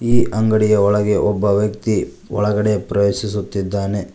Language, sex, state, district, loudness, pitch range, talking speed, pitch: Kannada, male, Karnataka, Koppal, -18 LUFS, 100-105 Hz, 100 wpm, 105 Hz